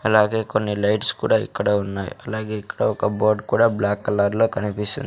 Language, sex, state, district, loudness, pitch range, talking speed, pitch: Telugu, male, Andhra Pradesh, Sri Satya Sai, -21 LUFS, 105-110 Hz, 180 wpm, 105 Hz